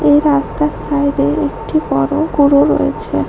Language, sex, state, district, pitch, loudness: Bengali, female, West Bengal, Jhargram, 280 Hz, -14 LUFS